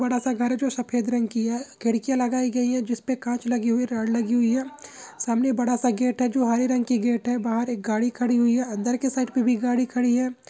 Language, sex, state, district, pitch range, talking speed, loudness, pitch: Hindi, male, Jharkhand, Jamtara, 235-250 Hz, 205 wpm, -24 LUFS, 245 Hz